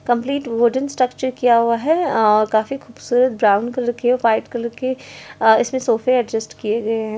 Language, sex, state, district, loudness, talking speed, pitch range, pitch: Hindi, female, Chhattisgarh, Jashpur, -18 LUFS, 160 wpm, 225-255 Hz, 240 Hz